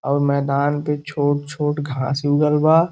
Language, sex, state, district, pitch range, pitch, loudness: Bhojpuri, male, Uttar Pradesh, Gorakhpur, 140-150 Hz, 145 Hz, -19 LUFS